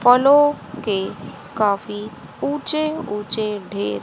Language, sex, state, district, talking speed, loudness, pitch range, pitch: Hindi, female, Haryana, Rohtak, 90 wpm, -20 LUFS, 205-285 Hz, 210 Hz